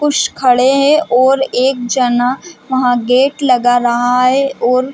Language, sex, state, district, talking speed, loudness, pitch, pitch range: Hindi, female, Chhattisgarh, Bilaspur, 145 wpm, -12 LUFS, 255 Hz, 245-275 Hz